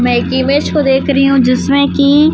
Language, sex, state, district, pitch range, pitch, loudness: Hindi, female, Chhattisgarh, Raipur, 260-280 Hz, 275 Hz, -11 LUFS